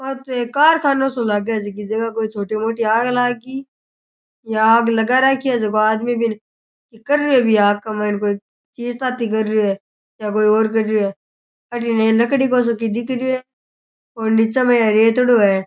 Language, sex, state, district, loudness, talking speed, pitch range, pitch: Rajasthani, male, Rajasthan, Churu, -17 LUFS, 225 wpm, 215-250 Hz, 225 Hz